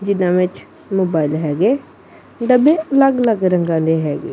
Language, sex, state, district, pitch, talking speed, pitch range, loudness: Punjabi, female, Punjab, Kapurthala, 185 Hz, 155 wpm, 160-245 Hz, -16 LUFS